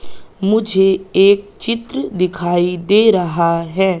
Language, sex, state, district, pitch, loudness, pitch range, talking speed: Hindi, female, Madhya Pradesh, Katni, 190 Hz, -15 LUFS, 175-200 Hz, 105 wpm